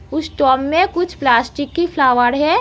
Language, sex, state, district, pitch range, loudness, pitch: Hindi, female, Uttar Pradesh, Etah, 260-340 Hz, -16 LUFS, 290 Hz